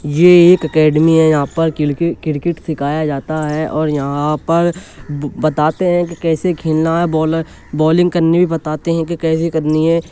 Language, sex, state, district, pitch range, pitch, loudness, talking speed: Hindi, male, Uttar Pradesh, Jyotiba Phule Nagar, 155-170 Hz, 160 Hz, -14 LUFS, 180 wpm